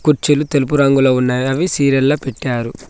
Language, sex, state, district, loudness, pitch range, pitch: Telugu, male, Telangana, Mahabubabad, -15 LUFS, 130-145 Hz, 135 Hz